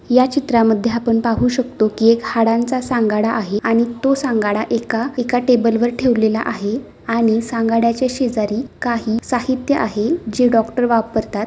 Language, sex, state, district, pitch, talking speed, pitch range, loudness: Marathi, female, Maharashtra, Aurangabad, 230 Hz, 155 wpm, 225-245 Hz, -17 LUFS